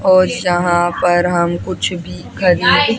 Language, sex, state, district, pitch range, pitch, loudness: Hindi, male, Haryana, Rohtak, 175-185 Hz, 175 Hz, -15 LUFS